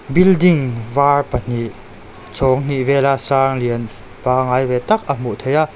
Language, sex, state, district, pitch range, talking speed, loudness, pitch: Mizo, male, Mizoram, Aizawl, 120-140 Hz, 165 wpm, -16 LUFS, 130 Hz